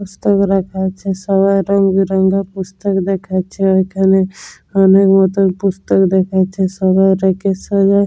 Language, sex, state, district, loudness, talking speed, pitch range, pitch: Bengali, female, West Bengal, Jalpaiguri, -14 LUFS, 120 wpm, 190-195 Hz, 195 Hz